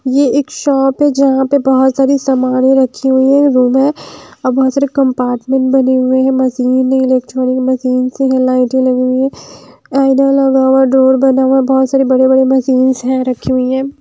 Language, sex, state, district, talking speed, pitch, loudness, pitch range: Hindi, female, Haryana, Jhajjar, 195 wpm, 265 Hz, -11 LUFS, 255-270 Hz